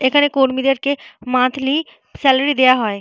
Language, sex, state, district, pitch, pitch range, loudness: Bengali, female, Jharkhand, Jamtara, 265 Hz, 255-280 Hz, -16 LUFS